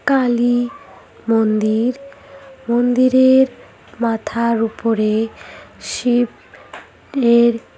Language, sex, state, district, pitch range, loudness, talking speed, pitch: Bengali, female, West Bengal, Malda, 225-260 Hz, -17 LUFS, 55 wpm, 240 Hz